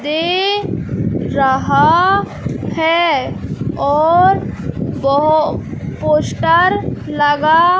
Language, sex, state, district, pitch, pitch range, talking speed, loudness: Hindi, male, Madhya Pradesh, Katni, 320 Hz, 295-360 Hz, 45 wpm, -15 LUFS